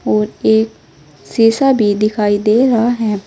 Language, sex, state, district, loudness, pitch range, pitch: Hindi, female, Uttar Pradesh, Saharanpur, -13 LUFS, 135-225 Hz, 210 Hz